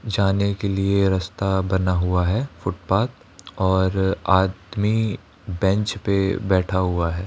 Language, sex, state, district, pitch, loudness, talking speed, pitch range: Hindi, male, Rajasthan, Jaipur, 95 Hz, -21 LUFS, 125 wpm, 95-100 Hz